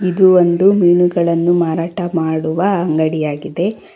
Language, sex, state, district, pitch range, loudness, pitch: Kannada, female, Karnataka, Bangalore, 165-180 Hz, -14 LUFS, 175 Hz